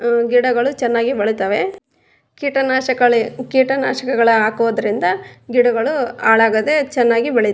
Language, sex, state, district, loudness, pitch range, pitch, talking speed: Kannada, female, Karnataka, Raichur, -16 LUFS, 230-260 Hz, 240 Hz, 95 wpm